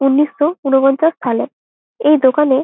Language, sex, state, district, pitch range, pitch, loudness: Bengali, female, West Bengal, Malda, 270-300 Hz, 285 Hz, -14 LUFS